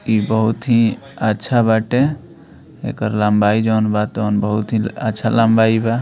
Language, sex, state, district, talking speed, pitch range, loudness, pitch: Bhojpuri, male, Bihar, Muzaffarpur, 150 wpm, 105-115 Hz, -17 LUFS, 110 Hz